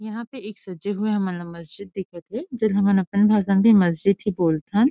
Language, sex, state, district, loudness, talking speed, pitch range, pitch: Chhattisgarhi, female, Chhattisgarh, Rajnandgaon, -21 LUFS, 220 wpm, 185-215 Hz, 200 Hz